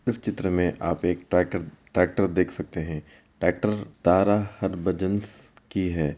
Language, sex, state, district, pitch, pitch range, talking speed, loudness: Hindi, male, Uttar Pradesh, Muzaffarnagar, 95 Hz, 85-100 Hz, 165 wpm, -26 LUFS